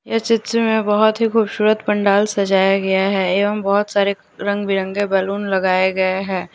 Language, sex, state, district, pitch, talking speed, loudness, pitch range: Hindi, female, Jharkhand, Deoghar, 200 Hz, 175 wpm, -17 LUFS, 195-215 Hz